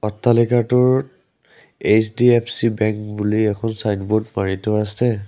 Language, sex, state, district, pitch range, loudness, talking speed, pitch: Assamese, male, Assam, Sonitpur, 105-120 Hz, -18 LUFS, 100 wpm, 110 Hz